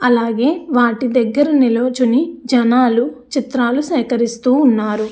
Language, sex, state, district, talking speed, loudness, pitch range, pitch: Telugu, female, Andhra Pradesh, Anantapur, 80 wpm, -15 LUFS, 235-270 Hz, 250 Hz